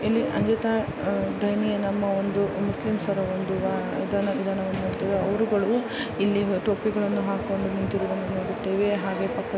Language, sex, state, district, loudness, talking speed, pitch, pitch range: Kannada, female, Karnataka, Dharwad, -26 LUFS, 120 wpm, 200 Hz, 195-215 Hz